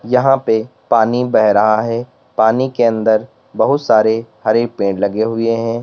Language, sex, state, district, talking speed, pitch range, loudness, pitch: Hindi, male, Uttar Pradesh, Lalitpur, 165 wpm, 110-120 Hz, -15 LUFS, 115 Hz